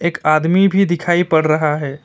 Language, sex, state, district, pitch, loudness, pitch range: Hindi, male, West Bengal, Alipurduar, 170 Hz, -15 LUFS, 155-175 Hz